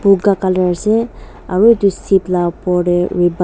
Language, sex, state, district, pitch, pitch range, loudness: Nagamese, female, Nagaland, Dimapur, 185 Hz, 180-200 Hz, -14 LUFS